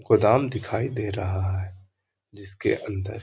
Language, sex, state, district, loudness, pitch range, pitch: Hindi, male, Uttar Pradesh, Hamirpur, -25 LUFS, 95-110 Hz, 100 Hz